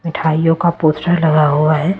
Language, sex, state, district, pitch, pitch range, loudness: Hindi, female, Delhi, New Delhi, 160 Hz, 155-170 Hz, -14 LUFS